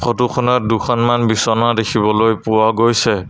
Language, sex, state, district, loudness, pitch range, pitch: Assamese, male, Assam, Sonitpur, -15 LUFS, 110-120 Hz, 115 Hz